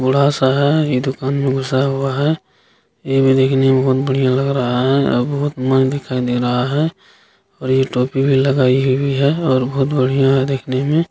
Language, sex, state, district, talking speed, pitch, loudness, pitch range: Hindi, male, Bihar, Bhagalpur, 195 wpm, 135 Hz, -16 LUFS, 130-140 Hz